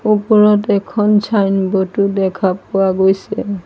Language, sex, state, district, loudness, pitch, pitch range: Assamese, female, Assam, Sonitpur, -14 LUFS, 200 Hz, 190-210 Hz